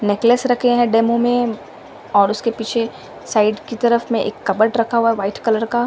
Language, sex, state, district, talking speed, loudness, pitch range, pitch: Hindi, female, Delhi, New Delhi, 205 wpm, -17 LUFS, 220-240 Hz, 230 Hz